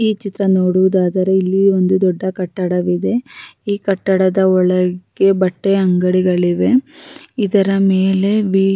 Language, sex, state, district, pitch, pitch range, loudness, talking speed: Kannada, female, Karnataka, Raichur, 190 Hz, 185-200 Hz, -15 LUFS, 95 wpm